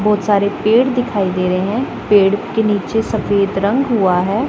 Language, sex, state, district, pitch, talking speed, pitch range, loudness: Hindi, female, Punjab, Pathankot, 205 Hz, 185 wpm, 195-225 Hz, -15 LUFS